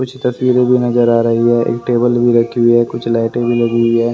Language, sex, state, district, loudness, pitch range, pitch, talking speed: Hindi, male, Haryana, Rohtak, -13 LUFS, 115-120 Hz, 120 Hz, 275 wpm